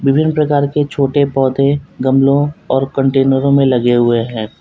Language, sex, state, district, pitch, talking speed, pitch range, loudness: Hindi, male, Uttar Pradesh, Lalitpur, 135 Hz, 155 wpm, 130-145 Hz, -14 LUFS